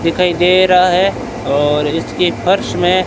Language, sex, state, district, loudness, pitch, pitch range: Hindi, male, Rajasthan, Bikaner, -13 LUFS, 180 Hz, 165-185 Hz